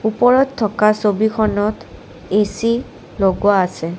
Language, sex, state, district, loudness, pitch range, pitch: Assamese, female, Assam, Kamrup Metropolitan, -17 LUFS, 200-220 Hz, 210 Hz